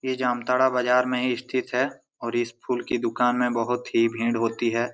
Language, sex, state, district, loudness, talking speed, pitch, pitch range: Hindi, male, Jharkhand, Jamtara, -24 LUFS, 220 wpm, 125 Hz, 120-125 Hz